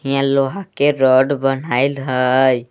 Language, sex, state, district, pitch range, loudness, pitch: Magahi, male, Jharkhand, Palamu, 130-140 Hz, -16 LUFS, 135 Hz